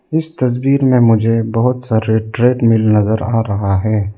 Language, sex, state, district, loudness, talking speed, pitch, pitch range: Hindi, male, Arunachal Pradesh, Lower Dibang Valley, -14 LUFS, 160 wpm, 115 Hz, 110-125 Hz